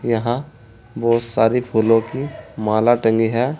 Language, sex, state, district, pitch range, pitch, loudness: Hindi, male, Uttar Pradesh, Saharanpur, 115-125 Hz, 115 Hz, -18 LUFS